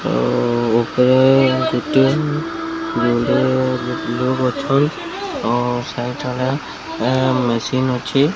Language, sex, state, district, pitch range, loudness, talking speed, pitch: Odia, male, Odisha, Sambalpur, 120-135 Hz, -18 LUFS, 65 wpm, 130 Hz